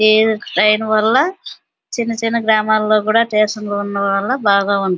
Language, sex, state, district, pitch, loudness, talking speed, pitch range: Telugu, female, Andhra Pradesh, Anantapur, 215 Hz, -15 LUFS, 155 wpm, 205-225 Hz